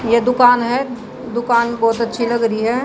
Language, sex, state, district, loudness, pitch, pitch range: Hindi, female, Haryana, Jhajjar, -16 LUFS, 235 Hz, 235-245 Hz